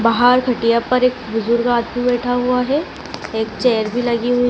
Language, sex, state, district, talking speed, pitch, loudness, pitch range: Hindi, female, Madhya Pradesh, Dhar, 185 wpm, 245 Hz, -17 LUFS, 230-250 Hz